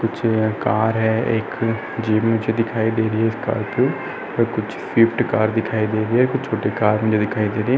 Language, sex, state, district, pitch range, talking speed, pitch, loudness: Hindi, male, Uttar Pradesh, Etah, 110-115 Hz, 210 wpm, 110 Hz, -20 LUFS